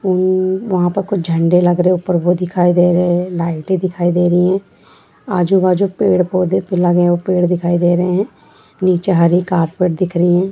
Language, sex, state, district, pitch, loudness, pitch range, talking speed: Hindi, female, Bihar, Sitamarhi, 180 Hz, -15 LUFS, 175-185 Hz, 195 wpm